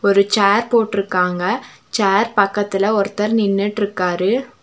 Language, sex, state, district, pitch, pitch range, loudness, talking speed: Tamil, female, Tamil Nadu, Nilgiris, 200 Hz, 195-210 Hz, -17 LUFS, 90 wpm